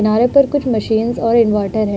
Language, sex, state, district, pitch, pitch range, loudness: Hindi, female, Uttar Pradesh, Budaun, 225 Hz, 215-240 Hz, -15 LUFS